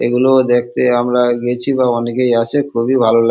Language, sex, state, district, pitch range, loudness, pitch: Bengali, male, West Bengal, Kolkata, 120-130 Hz, -14 LUFS, 120 Hz